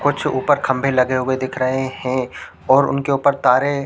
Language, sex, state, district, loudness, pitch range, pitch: Hindi, male, Chhattisgarh, Raigarh, -18 LUFS, 130-140 Hz, 130 Hz